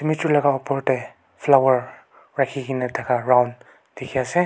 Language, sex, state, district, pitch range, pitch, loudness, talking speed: Nagamese, male, Nagaland, Kohima, 125-140 Hz, 130 Hz, -21 LUFS, 150 wpm